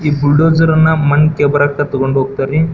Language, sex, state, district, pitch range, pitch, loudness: Kannada, male, Karnataka, Belgaum, 145-160 Hz, 145 Hz, -12 LUFS